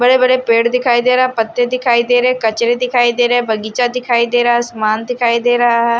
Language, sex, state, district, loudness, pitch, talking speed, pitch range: Hindi, male, Odisha, Nuapada, -13 LUFS, 240 Hz, 250 wpm, 235-245 Hz